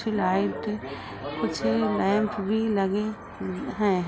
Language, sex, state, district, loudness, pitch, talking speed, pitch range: Hindi, female, Uttar Pradesh, Jalaun, -27 LUFS, 195 Hz, 105 wpm, 145-215 Hz